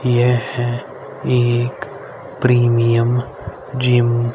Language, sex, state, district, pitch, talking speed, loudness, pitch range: Hindi, male, Haryana, Rohtak, 120 Hz, 70 wpm, -17 LUFS, 120-125 Hz